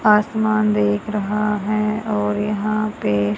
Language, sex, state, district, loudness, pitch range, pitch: Hindi, female, Haryana, Charkhi Dadri, -20 LUFS, 205-215 Hz, 210 Hz